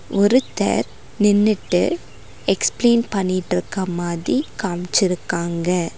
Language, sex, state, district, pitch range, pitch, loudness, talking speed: Tamil, female, Tamil Nadu, Nilgiris, 180-215 Hz, 190 Hz, -20 LUFS, 60 wpm